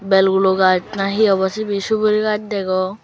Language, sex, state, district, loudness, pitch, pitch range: Chakma, male, Tripura, Unakoti, -17 LUFS, 195 Hz, 190-215 Hz